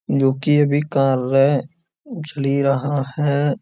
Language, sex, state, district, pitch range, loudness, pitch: Hindi, male, Uttar Pradesh, Budaun, 135-145 Hz, -18 LUFS, 140 Hz